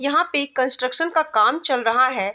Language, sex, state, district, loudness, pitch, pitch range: Hindi, female, Bihar, Vaishali, -20 LUFS, 260 Hz, 255-315 Hz